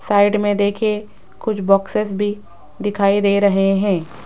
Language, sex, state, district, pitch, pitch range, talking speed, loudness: Hindi, female, Rajasthan, Jaipur, 205 Hz, 195-210 Hz, 140 wpm, -18 LUFS